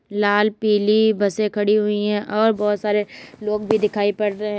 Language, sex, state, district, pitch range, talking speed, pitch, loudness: Hindi, female, Uttar Pradesh, Lalitpur, 205-215 Hz, 195 wpm, 210 Hz, -19 LUFS